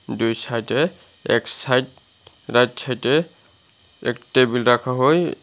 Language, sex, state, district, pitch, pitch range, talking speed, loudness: Bengali, male, Tripura, Unakoti, 120 Hz, 115-130 Hz, 145 wpm, -20 LUFS